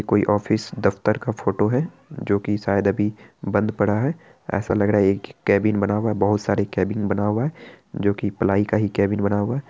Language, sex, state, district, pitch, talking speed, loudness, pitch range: Hindi, male, Bihar, Araria, 105 Hz, 235 wpm, -22 LUFS, 100-110 Hz